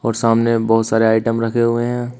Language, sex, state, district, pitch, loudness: Hindi, male, Uttar Pradesh, Shamli, 115 Hz, -16 LUFS